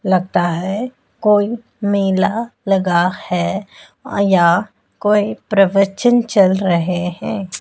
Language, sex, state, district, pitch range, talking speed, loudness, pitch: Hindi, male, Madhya Pradesh, Dhar, 185-210 Hz, 95 wpm, -16 LUFS, 195 Hz